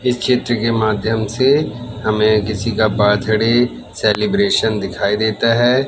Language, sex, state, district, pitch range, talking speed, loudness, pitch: Hindi, male, Madhya Pradesh, Katni, 110-125 Hz, 130 wpm, -16 LUFS, 115 Hz